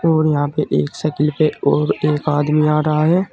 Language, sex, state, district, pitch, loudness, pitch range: Hindi, male, Uttar Pradesh, Saharanpur, 150 Hz, -17 LUFS, 150-155 Hz